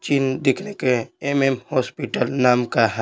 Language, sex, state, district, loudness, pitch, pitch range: Hindi, male, Bihar, Patna, -21 LUFS, 130 Hz, 125-140 Hz